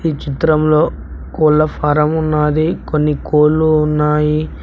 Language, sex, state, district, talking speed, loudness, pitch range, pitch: Telugu, male, Telangana, Mahabubabad, 90 wpm, -14 LUFS, 150-155 Hz, 155 Hz